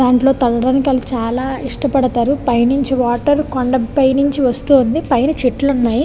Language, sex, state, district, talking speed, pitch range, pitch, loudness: Telugu, female, Andhra Pradesh, Visakhapatnam, 100 wpm, 245-275 Hz, 260 Hz, -15 LUFS